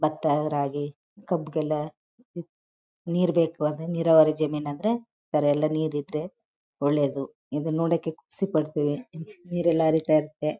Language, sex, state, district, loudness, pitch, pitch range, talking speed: Kannada, female, Karnataka, Chamarajanagar, -26 LUFS, 155 Hz, 150-170 Hz, 95 wpm